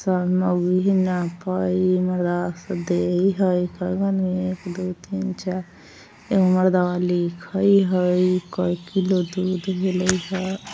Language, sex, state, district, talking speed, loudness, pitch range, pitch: Maithili, female, Bihar, Vaishali, 80 wpm, -22 LUFS, 180-190 Hz, 185 Hz